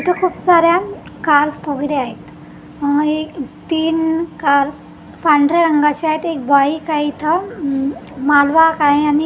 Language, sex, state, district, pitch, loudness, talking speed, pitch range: Marathi, female, Maharashtra, Gondia, 300 Hz, -15 LUFS, 140 wpm, 285-325 Hz